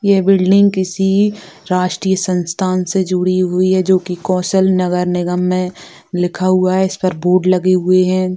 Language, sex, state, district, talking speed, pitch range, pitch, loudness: Hindi, female, Bihar, Sitamarhi, 165 wpm, 180-190 Hz, 185 Hz, -15 LUFS